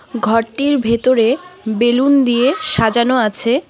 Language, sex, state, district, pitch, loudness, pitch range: Bengali, female, West Bengal, Alipurduar, 245 Hz, -14 LUFS, 230-275 Hz